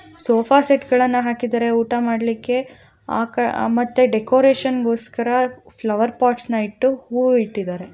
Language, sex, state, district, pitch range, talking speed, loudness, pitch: Kannada, female, Karnataka, Raichur, 230-255 Hz, 115 wpm, -19 LUFS, 240 Hz